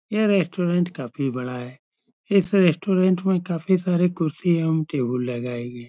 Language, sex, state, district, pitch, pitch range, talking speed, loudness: Hindi, male, Uttar Pradesh, Etah, 170 Hz, 130-185 Hz, 185 wpm, -22 LUFS